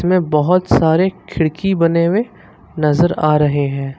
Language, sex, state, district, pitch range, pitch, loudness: Hindi, male, Uttar Pradesh, Lucknow, 150-180 Hz, 165 Hz, -15 LUFS